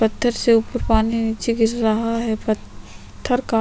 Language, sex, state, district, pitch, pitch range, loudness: Hindi, female, Chhattisgarh, Sukma, 225 Hz, 220-230 Hz, -20 LUFS